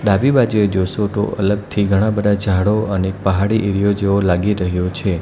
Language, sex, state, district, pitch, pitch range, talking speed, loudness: Gujarati, male, Gujarat, Valsad, 100 Hz, 95-105 Hz, 175 wpm, -17 LUFS